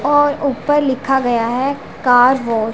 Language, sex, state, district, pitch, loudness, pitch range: Hindi, female, Punjab, Pathankot, 265 Hz, -15 LUFS, 245-285 Hz